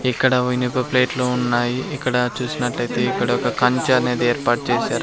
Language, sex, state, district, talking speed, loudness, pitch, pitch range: Telugu, male, Andhra Pradesh, Sri Satya Sai, 145 wpm, -20 LUFS, 125 Hz, 120-125 Hz